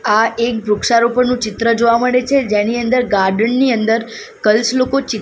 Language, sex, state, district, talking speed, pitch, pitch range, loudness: Gujarati, female, Gujarat, Gandhinagar, 185 wpm, 230 Hz, 220-250 Hz, -15 LUFS